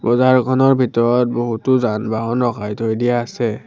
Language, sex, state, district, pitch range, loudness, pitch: Assamese, male, Assam, Sonitpur, 115-125 Hz, -17 LUFS, 120 Hz